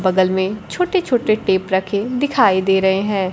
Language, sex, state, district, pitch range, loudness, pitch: Hindi, female, Bihar, Kaimur, 190-240 Hz, -17 LUFS, 195 Hz